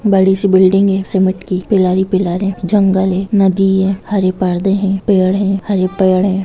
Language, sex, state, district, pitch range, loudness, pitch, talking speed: Hindi, female, Bihar, Gopalganj, 185-195 Hz, -13 LUFS, 190 Hz, 195 wpm